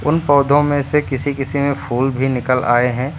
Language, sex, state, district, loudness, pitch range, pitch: Hindi, male, Uttar Pradesh, Lucknow, -16 LUFS, 130-145 Hz, 140 Hz